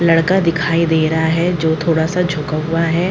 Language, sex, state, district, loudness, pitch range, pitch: Hindi, female, Bihar, Madhepura, -16 LUFS, 160-170 Hz, 165 Hz